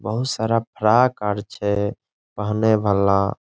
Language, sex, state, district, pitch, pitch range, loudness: Maithili, male, Bihar, Saharsa, 105 Hz, 100-115 Hz, -20 LUFS